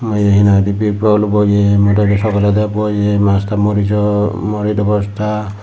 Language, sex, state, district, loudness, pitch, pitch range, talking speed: Chakma, male, Tripura, Dhalai, -14 LUFS, 105 Hz, 100-105 Hz, 115 wpm